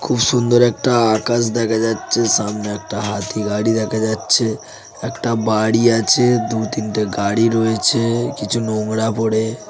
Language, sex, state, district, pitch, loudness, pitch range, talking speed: Bengali, male, West Bengal, Jhargram, 110 Hz, -17 LUFS, 110-115 Hz, 140 wpm